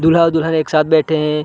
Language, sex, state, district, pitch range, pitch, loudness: Hindi, male, Chhattisgarh, Sarguja, 155-160 Hz, 160 Hz, -14 LUFS